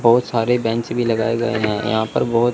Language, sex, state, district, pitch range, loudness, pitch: Hindi, male, Chandigarh, Chandigarh, 110-120 Hz, -19 LUFS, 115 Hz